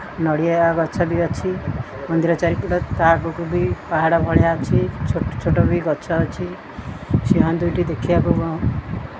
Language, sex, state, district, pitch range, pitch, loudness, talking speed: Odia, female, Odisha, Khordha, 155-170 Hz, 165 Hz, -20 LUFS, 135 wpm